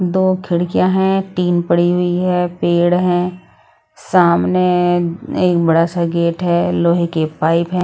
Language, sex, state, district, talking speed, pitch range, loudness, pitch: Hindi, female, Odisha, Sambalpur, 155 wpm, 170-180 Hz, -15 LUFS, 175 Hz